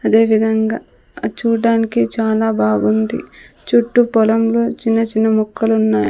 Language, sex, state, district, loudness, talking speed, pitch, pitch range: Telugu, female, Andhra Pradesh, Sri Satya Sai, -15 LUFS, 110 wpm, 225 Hz, 220-230 Hz